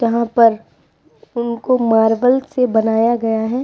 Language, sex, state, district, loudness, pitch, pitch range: Hindi, female, Uttar Pradesh, Budaun, -15 LUFS, 235 Hz, 225-250 Hz